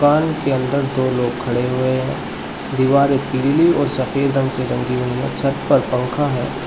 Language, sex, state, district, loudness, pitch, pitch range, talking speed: Hindi, male, Uttar Pradesh, Shamli, -18 LUFS, 130 Hz, 125-140 Hz, 190 wpm